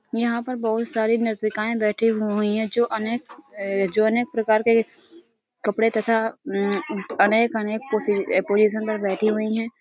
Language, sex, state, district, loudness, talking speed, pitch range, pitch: Hindi, female, Uttar Pradesh, Hamirpur, -22 LUFS, 165 wpm, 215-230 Hz, 220 Hz